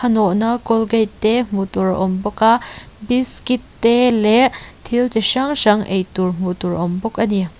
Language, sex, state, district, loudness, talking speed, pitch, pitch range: Mizo, female, Mizoram, Aizawl, -17 LUFS, 180 wpm, 220 Hz, 190-240 Hz